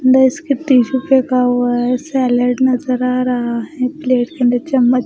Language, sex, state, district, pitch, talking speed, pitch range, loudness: Hindi, female, Bihar, West Champaran, 255 Hz, 180 wpm, 245-260 Hz, -15 LUFS